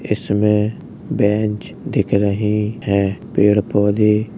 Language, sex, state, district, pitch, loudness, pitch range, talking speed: Hindi, male, Uttar Pradesh, Jalaun, 105 Hz, -18 LUFS, 105-110 Hz, 110 wpm